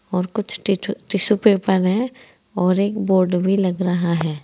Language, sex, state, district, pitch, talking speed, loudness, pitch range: Hindi, female, Uttar Pradesh, Saharanpur, 195 Hz, 175 wpm, -19 LUFS, 180-210 Hz